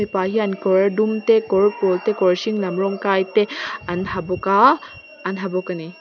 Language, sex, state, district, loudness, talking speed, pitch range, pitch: Mizo, female, Mizoram, Aizawl, -19 LUFS, 230 wpm, 185-210 Hz, 195 Hz